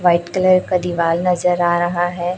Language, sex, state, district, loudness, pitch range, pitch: Hindi, female, Chhattisgarh, Raipur, -17 LUFS, 175-180 Hz, 175 Hz